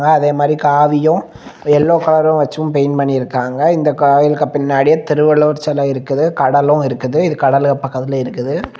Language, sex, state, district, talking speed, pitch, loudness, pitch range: Tamil, male, Tamil Nadu, Kanyakumari, 145 wpm, 145 Hz, -13 LUFS, 140-150 Hz